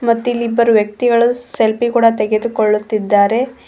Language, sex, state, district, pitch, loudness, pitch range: Kannada, female, Karnataka, Koppal, 230 Hz, -14 LUFS, 215-240 Hz